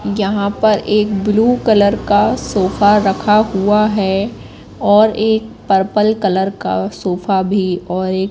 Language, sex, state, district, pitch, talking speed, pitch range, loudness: Hindi, female, Madhya Pradesh, Katni, 205 Hz, 135 wpm, 190-215 Hz, -14 LUFS